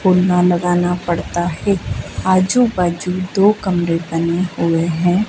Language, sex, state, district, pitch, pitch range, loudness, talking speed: Hindi, female, Madhya Pradesh, Dhar, 180 Hz, 170-185 Hz, -17 LUFS, 125 wpm